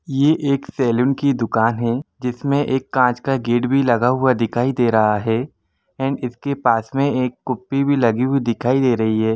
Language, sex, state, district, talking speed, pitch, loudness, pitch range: Hindi, male, Jharkhand, Jamtara, 225 wpm, 125 Hz, -19 LUFS, 120-135 Hz